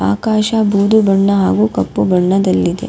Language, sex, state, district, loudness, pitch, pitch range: Kannada, female, Karnataka, Raichur, -13 LUFS, 195 Hz, 140-215 Hz